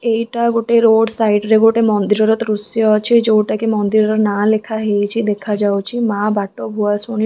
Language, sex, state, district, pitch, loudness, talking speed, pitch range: Odia, female, Odisha, Khordha, 220 Hz, -15 LUFS, 155 wpm, 210-225 Hz